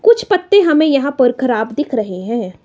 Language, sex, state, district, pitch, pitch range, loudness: Hindi, female, Himachal Pradesh, Shimla, 275 Hz, 230-350 Hz, -14 LUFS